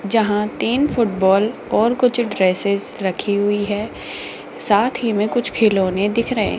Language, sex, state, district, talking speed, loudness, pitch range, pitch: Hindi, female, Rajasthan, Jaipur, 155 wpm, -18 LUFS, 200-235 Hz, 210 Hz